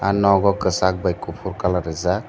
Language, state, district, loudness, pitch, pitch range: Kokborok, Tripura, Dhalai, -20 LUFS, 95 Hz, 90-100 Hz